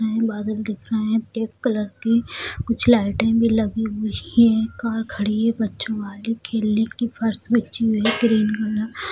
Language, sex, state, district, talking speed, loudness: Hindi, female, Bihar, Jamui, 170 wpm, -21 LUFS